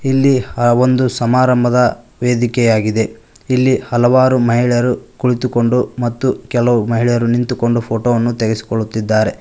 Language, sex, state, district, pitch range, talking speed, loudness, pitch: Kannada, male, Karnataka, Koppal, 115-125 Hz, 95 wpm, -15 LUFS, 120 Hz